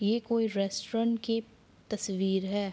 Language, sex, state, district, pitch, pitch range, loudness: Hindi, female, Bihar, Araria, 215 Hz, 195-225 Hz, -31 LUFS